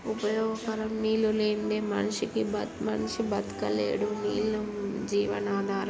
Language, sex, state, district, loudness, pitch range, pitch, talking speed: Telugu, female, Telangana, Karimnagar, -30 LUFS, 205-220 Hz, 210 Hz, 100 wpm